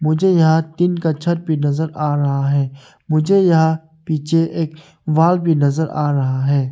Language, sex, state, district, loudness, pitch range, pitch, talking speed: Hindi, male, Arunachal Pradesh, Longding, -17 LUFS, 145-165 Hz, 155 Hz, 180 wpm